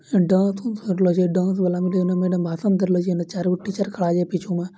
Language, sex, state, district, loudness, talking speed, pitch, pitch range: Angika, male, Bihar, Bhagalpur, -21 LUFS, 250 wpm, 185 Hz, 180-190 Hz